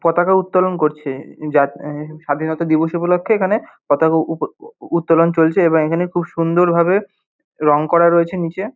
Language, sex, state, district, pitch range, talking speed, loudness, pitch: Bengali, male, West Bengal, North 24 Parganas, 155-180 Hz, 150 wpm, -16 LUFS, 170 Hz